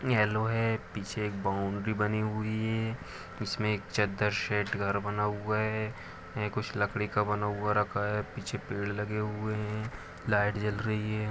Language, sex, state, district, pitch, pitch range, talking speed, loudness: Hindi, male, Jharkhand, Sahebganj, 105 Hz, 105-110 Hz, 170 wpm, -32 LUFS